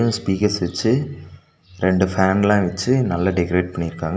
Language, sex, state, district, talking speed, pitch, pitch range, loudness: Tamil, male, Tamil Nadu, Nilgiris, 130 wpm, 95 Hz, 90-105 Hz, -19 LUFS